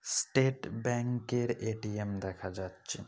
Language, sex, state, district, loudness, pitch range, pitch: Bengali, male, West Bengal, Kolkata, -34 LUFS, 95-120 Hz, 110 Hz